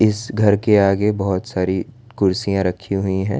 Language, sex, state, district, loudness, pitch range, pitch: Hindi, male, Gujarat, Valsad, -18 LUFS, 95-105 Hz, 100 Hz